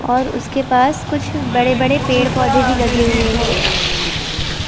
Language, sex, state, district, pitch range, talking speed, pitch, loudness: Hindi, female, Uttar Pradesh, Varanasi, 245-260 Hz, 130 wpm, 255 Hz, -16 LUFS